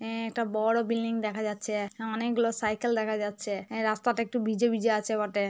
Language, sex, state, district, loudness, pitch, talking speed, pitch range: Bengali, female, West Bengal, Jhargram, -29 LUFS, 220 Hz, 185 wpm, 215-230 Hz